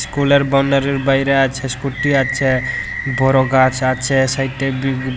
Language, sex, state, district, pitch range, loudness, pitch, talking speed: Bengali, male, Tripura, West Tripura, 130-135 Hz, -16 LUFS, 135 Hz, 130 wpm